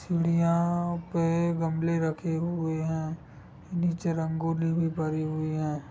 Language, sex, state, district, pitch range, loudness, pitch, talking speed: Hindi, male, Bihar, Sitamarhi, 160-170 Hz, -28 LUFS, 165 Hz, 120 wpm